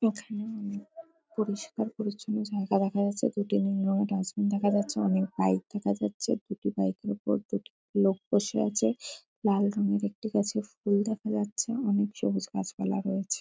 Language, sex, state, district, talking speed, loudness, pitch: Bengali, female, West Bengal, Kolkata, 150 wpm, -30 LUFS, 200 Hz